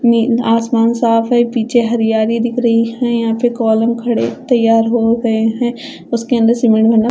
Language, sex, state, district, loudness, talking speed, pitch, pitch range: Hindi, female, Punjab, Fazilka, -14 LUFS, 175 wpm, 230 Hz, 225-240 Hz